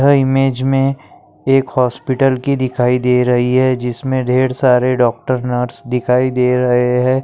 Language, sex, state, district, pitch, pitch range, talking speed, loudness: Hindi, male, Maharashtra, Aurangabad, 130 Hz, 125-135 Hz, 155 wpm, -15 LUFS